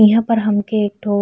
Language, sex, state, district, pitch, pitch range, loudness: Bhojpuri, female, Uttar Pradesh, Ghazipur, 215 Hz, 205-220 Hz, -17 LUFS